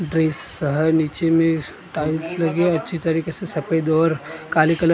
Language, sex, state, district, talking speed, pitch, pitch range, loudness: Hindi, male, Maharashtra, Gondia, 160 wpm, 165 Hz, 155-165 Hz, -21 LUFS